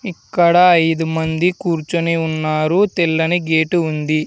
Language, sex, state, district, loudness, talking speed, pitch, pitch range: Telugu, male, Andhra Pradesh, Sri Satya Sai, -16 LUFS, 110 wpm, 165 Hz, 160-175 Hz